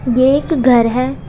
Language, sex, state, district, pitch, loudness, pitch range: Hindi, female, Uttar Pradesh, Muzaffarnagar, 255 Hz, -13 LUFS, 245-270 Hz